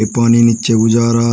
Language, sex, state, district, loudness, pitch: Hindi, male, Uttar Pradesh, Shamli, -12 LUFS, 115 Hz